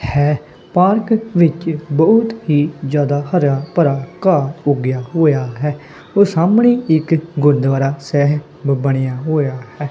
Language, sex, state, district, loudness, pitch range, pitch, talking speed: Punjabi, male, Punjab, Kapurthala, -16 LUFS, 140-170 Hz, 150 Hz, 120 wpm